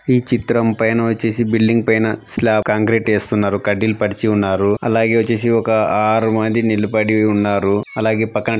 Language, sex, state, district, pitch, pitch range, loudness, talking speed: Telugu, male, Andhra Pradesh, Anantapur, 110 Hz, 105-115 Hz, -16 LUFS, 145 wpm